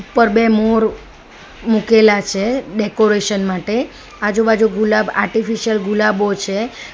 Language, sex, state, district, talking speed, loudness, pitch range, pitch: Gujarati, female, Gujarat, Valsad, 105 wpm, -15 LUFS, 205-225 Hz, 215 Hz